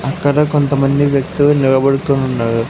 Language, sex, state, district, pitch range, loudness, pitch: Telugu, male, Andhra Pradesh, Sri Satya Sai, 135-145 Hz, -14 LUFS, 140 Hz